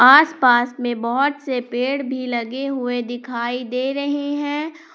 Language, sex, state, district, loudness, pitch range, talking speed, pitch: Hindi, female, Jharkhand, Palamu, -20 LUFS, 245-280 Hz, 170 wpm, 255 Hz